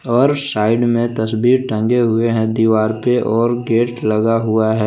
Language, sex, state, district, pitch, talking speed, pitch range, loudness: Hindi, male, Jharkhand, Palamu, 115 Hz, 170 wpm, 110-120 Hz, -16 LUFS